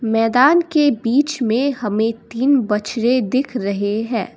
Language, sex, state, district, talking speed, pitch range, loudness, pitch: Hindi, female, Assam, Kamrup Metropolitan, 135 wpm, 225-270 Hz, -17 LUFS, 235 Hz